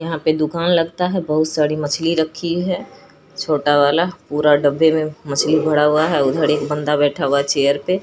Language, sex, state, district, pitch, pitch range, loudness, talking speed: Hindi, female, Bihar, Katihar, 155 Hz, 145-165 Hz, -17 LUFS, 200 wpm